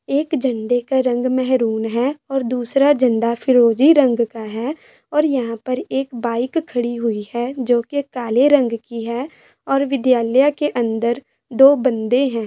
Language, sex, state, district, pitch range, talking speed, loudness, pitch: Hindi, female, Jharkhand, Sahebganj, 235-275 Hz, 165 wpm, -18 LUFS, 250 Hz